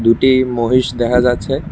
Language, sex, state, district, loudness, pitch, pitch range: Bengali, male, Tripura, West Tripura, -14 LUFS, 125 Hz, 120-130 Hz